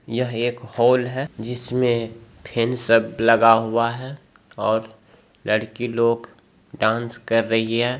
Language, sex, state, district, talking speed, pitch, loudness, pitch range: Hindi, male, Bihar, Begusarai, 125 wpm, 115 Hz, -21 LUFS, 115-120 Hz